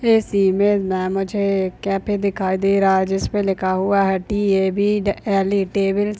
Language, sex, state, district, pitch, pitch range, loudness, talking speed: Hindi, male, Bihar, Muzaffarpur, 195 Hz, 190-205 Hz, -19 LUFS, 195 wpm